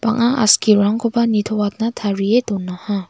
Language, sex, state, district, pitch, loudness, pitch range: Garo, female, Meghalaya, West Garo Hills, 215 Hz, -17 LUFS, 205-230 Hz